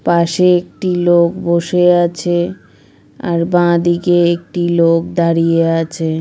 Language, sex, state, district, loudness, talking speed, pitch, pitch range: Bengali, female, West Bengal, Jalpaiguri, -14 LUFS, 105 wpm, 170 Hz, 170-175 Hz